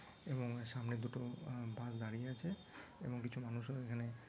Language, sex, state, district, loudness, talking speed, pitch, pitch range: Bengali, male, West Bengal, Dakshin Dinajpur, -45 LUFS, 170 wpm, 120 Hz, 120-130 Hz